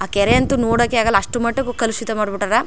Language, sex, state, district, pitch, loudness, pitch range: Kannada, female, Karnataka, Chamarajanagar, 230 Hz, -18 LUFS, 205-240 Hz